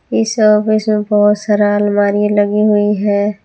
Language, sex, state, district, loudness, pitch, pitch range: Hindi, female, Jharkhand, Palamu, -13 LUFS, 210 Hz, 205-210 Hz